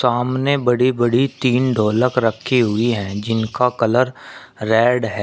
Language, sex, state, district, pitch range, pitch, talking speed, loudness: Hindi, male, Uttar Pradesh, Shamli, 110-125 Hz, 120 Hz, 140 wpm, -17 LUFS